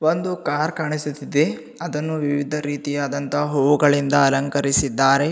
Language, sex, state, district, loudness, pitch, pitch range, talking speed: Kannada, male, Karnataka, Bidar, -21 LUFS, 145 Hz, 140-150 Hz, 90 wpm